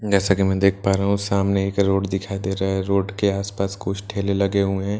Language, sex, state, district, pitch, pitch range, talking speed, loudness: Hindi, male, Bihar, Katihar, 100 Hz, 95-100 Hz, 275 wpm, -21 LUFS